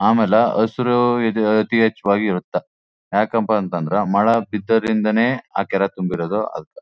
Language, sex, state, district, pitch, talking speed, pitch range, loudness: Kannada, male, Karnataka, Chamarajanagar, 110 Hz, 150 wpm, 100-115 Hz, -19 LUFS